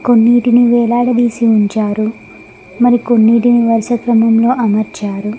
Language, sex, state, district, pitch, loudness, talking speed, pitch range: Telugu, female, Telangana, Mahabubabad, 230 Hz, -12 LUFS, 80 wpm, 220-240 Hz